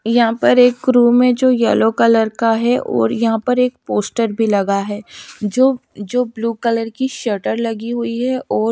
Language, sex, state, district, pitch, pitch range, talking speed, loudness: Hindi, female, Chhattisgarh, Raipur, 230 Hz, 220-250 Hz, 200 wpm, -16 LUFS